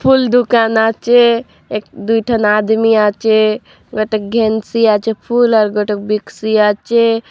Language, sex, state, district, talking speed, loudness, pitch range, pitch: Halbi, female, Chhattisgarh, Bastar, 105 wpm, -13 LUFS, 215-230 Hz, 220 Hz